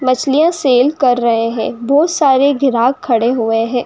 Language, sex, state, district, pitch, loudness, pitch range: Hindi, female, Uttar Pradesh, Jyotiba Phule Nagar, 255 Hz, -13 LUFS, 235-280 Hz